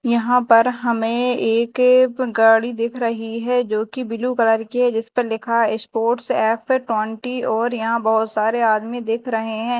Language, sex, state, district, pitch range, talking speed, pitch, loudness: Hindi, female, Madhya Pradesh, Dhar, 225-245 Hz, 170 wpm, 230 Hz, -19 LUFS